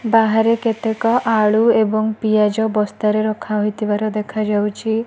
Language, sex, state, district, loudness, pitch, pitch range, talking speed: Odia, female, Odisha, Malkangiri, -17 LUFS, 215 Hz, 210-225 Hz, 95 wpm